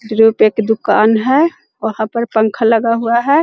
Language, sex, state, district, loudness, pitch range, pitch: Hindi, female, Bihar, Jahanabad, -14 LUFS, 220-235 Hz, 225 Hz